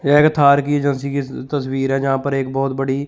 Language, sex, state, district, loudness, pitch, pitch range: Hindi, male, Chandigarh, Chandigarh, -18 LUFS, 140 Hz, 135-145 Hz